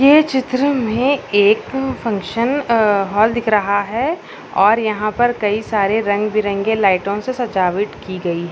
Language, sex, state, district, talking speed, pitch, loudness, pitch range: Hindi, female, Uttar Pradesh, Gorakhpur, 160 wpm, 215 Hz, -17 LUFS, 200-245 Hz